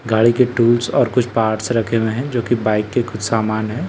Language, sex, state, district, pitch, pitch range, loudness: Hindi, male, Bihar, Katihar, 115 Hz, 110-120 Hz, -17 LUFS